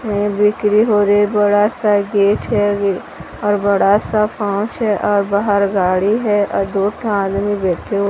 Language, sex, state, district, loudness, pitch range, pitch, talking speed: Hindi, female, Odisha, Sambalpur, -16 LUFS, 200-210 Hz, 205 Hz, 165 wpm